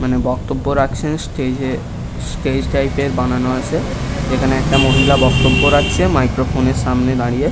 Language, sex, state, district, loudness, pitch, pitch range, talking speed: Bengali, male, West Bengal, Kolkata, -16 LUFS, 130 Hz, 125-135 Hz, 160 wpm